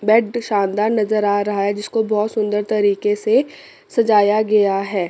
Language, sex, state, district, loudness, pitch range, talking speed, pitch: Hindi, female, Chandigarh, Chandigarh, -18 LUFS, 205-220 Hz, 165 wpm, 210 Hz